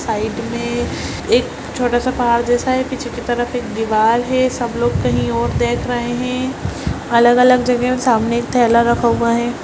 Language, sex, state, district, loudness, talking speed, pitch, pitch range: Hindi, female, Bihar, Muzaffarpur, -17 LUFS, 175 wpm, 240 Hz, 230-245 Hz